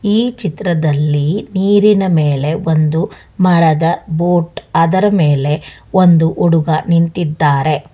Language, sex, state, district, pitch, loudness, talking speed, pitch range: Kannada, female, Karnataka, Bangalore, 165 Hz, -13 LUFS, 90 wpm, 155-185 Hz